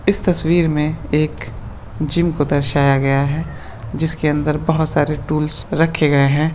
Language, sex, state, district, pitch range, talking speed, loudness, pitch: Hindi, male, Bihar, East Champaran, 145-160 Hz, 155 wpm, -17 LUFS, 150 Hz